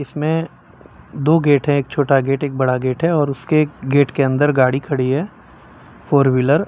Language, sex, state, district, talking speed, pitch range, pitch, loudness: Hindi, male, Gujarat, Valsad, 200 wpm, 135-150 Hz, 140 Hz, -17 LUFS